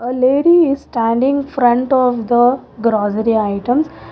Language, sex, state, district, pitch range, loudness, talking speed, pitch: English, female, Karnataka, Bangalore, 230-270 Hz, -15 LUFS, 130 wpm, 245 Hz